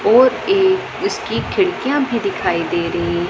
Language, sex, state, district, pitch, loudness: Hindi, female, Punjab, Pathankot, 285 Hz, -17 LUFS